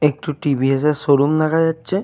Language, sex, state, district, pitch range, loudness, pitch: Bengali, male, Jharkhand, Jamtara, 140-160 Hz, -17 LUFS, 150 Hz